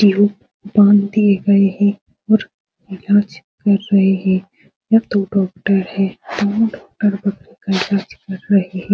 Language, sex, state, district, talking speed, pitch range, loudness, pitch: Hindi, female, Bihar, Supaul, 160 wpm, 195-205 Hz, -16 LUFS, 200 Hz